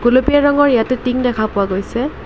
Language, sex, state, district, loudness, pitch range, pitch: Assamese, female, Assam, Kamrup Metropolitan, -15 LUFS, 225-265 Hz, 250 Hz